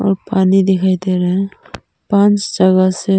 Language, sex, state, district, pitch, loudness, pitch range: Hindi, female, Arunachal Pradesh, Papum Pare, 190 Hz, -14 LUFS, 185-195 Hz